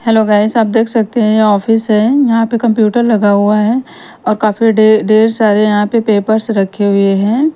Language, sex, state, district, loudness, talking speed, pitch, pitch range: Hindi, female, Punjab, Kapurthala, -11 LUFS, 205 wpm, 220 Hz, 210-230 Hz